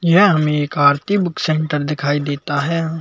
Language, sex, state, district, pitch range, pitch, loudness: Hindi, male, Madhya Pradesh, Bhopal, 145-165 Hz, 150 Hz, -17 LUFS